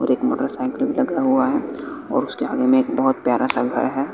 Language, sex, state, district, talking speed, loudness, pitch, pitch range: Hindi, male, Bihar, West Champaran, 230 wpm, -20 LUFS, 270 Hz, 265-280 Hz